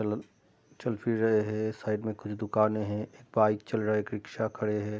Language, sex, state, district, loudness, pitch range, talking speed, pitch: Hindi, male, Bihar, Darbhanga, -30 LUFS, 105-110 Hz, 215 wpm, 110 Hz